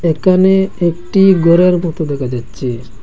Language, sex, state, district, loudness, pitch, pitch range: Bengali, male, Assam, Hailakandi, -13 LUFS, 170 Hz, 130-185 Hz